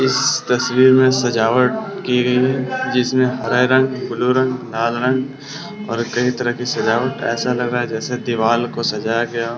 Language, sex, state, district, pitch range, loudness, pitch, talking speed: Hindi, male, Bihar, Sitamarhi, 120-130 Hz, -17 LUFS, 125 Hz, 180 wpm